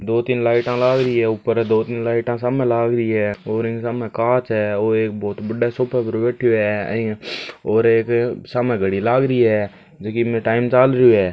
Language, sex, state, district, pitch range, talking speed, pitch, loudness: Hindi, male, Rajasthan, Churu, 110-120 Hz, 210 wpm, 115 Hz, -19 LUFS